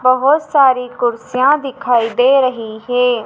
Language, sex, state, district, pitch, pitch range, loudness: Hindi, female, Madhya Pradesh, Dhar, 250 Hz, 240-270 Hz, -14 LUFS